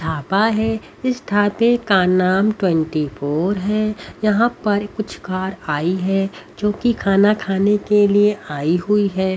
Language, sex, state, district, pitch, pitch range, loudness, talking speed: Hindi, female, Haryana, Rohtak, 200 Hz, 185-210 Hz, -18 LUFS, 155 wpm